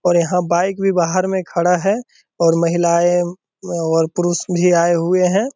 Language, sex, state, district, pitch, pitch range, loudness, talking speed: Hindi, male, Bihar, Purnia, 175 Hz, 170-185 Hz, -17 LUFS, 170 wpm